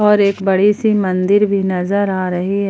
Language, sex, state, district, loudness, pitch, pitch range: Hindi, female, Jharkhand, Palamu, -15 LUFS, 200 Hz, 190-205 Hz